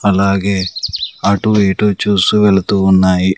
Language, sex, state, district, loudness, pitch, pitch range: Telugu, male, Andhra Pradesh, Sri Satya Sai, -13 LUFS, 100 Hz, 95-105 Hz